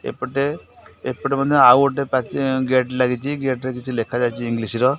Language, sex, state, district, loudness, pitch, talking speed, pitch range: Odia, male, Odisha, Khordha, -19 LUFS, 130 Hz, 180 wpm, 125-140 Hz